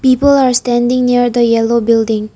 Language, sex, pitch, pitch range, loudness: English, female, 240 Hz, 230-250 Hz, -12 LUFS